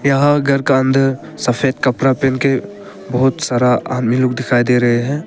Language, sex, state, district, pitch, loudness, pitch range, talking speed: Hindi, male, Arunachal Pradesh, Papum Pare, 130 Hz, -15 LUFS, 125-140 Hz, 180 wpm